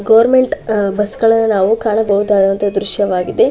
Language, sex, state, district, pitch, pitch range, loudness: Kannada, female, Karnataka, Shimoga, 210 Hz, 200-225 Hz, -13 LUFS